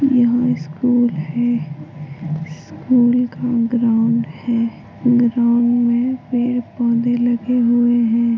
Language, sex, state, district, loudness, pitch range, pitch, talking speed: Hindi, female, Uttar Pradesh, Hamirpur, -17 LUFS, 230-245 Hz, 240 Hz, 100 wpm